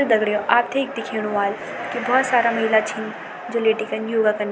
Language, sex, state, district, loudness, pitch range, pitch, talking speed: Garhwali, female, Uttarakhand, Tehri Garhwal, -21 LUFS, 215-240 Hz, 220 Hz, 200 wpm